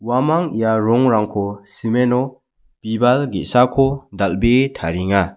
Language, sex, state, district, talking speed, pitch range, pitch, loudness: Garo, male, Meghalaya, West Garo Hills, 90 wpm, 105-130 Hz, 120 Hz, -17 LUFS